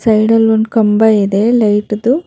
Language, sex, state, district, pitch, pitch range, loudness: Kannada, female, Karnataka, Bangalore, 220 Hz, 210-225 Hz, -11 LUFS